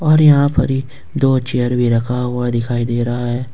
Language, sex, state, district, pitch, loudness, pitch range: Hindi, male, Jharkhand, Ranchi, 125 Hz, -16 LUFS, 120-135 Hz